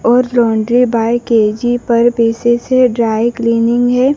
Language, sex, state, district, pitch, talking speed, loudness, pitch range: Hindi, female, Madhya Pradesh, Dhar, 240 Hz, 145 wpm, -12 LUFS, 230-245 Hz